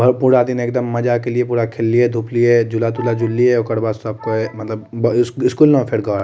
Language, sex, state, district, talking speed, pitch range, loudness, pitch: Maithili, male, Bihar, Madhepura, 220 wpm, 115-125 Hz, -16 LUFS, 120 Hz